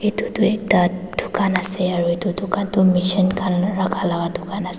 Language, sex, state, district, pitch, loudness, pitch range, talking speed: Nagamese, female, Nagaland, Dimapur, 185 Hz, -20 LUFS, 180-200 Hz, 190 wpm